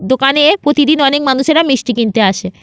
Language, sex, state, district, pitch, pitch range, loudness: Bengali, female, West Bengal, Paschim Medinipur, 270 Hz, 225-290 Hz, -11 LUFS